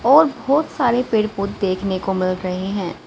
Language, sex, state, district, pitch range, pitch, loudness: Hindi, female, Haryana, Rohtak, 190-250 Hz, 200 Hz, -19 LUFS